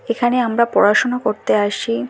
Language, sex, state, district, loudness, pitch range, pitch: Bengali, female, West Bengal, North 24 Parganas, -17 LUFS, 205-240 Hz, 225 Hz